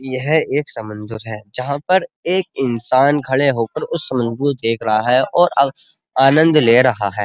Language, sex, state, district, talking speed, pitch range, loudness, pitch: Hindi, male, Uttar Pradesh, Muzaffarnagar, 175 wpm, 115-145 Hz, -16 LUFS, 130 Hz